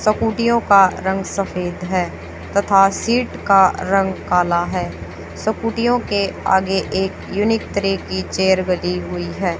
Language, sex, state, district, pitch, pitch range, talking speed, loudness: Hindi, female, Haryana, Charkhi Dadri, 190 Hz, 180-200 Hz, 140 wpm, -18 LUFS